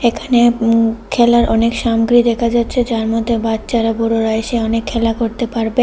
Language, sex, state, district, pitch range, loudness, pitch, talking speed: Bengali, female, Tripura, West Tripura, 225-235 Hz, -15 LUFS, 230 Hz, 155 wpm